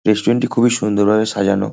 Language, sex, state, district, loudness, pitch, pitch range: Bengali, male, West Bengal, Kolkata, -16 LUFS, 110 Hz, 100-120 Hz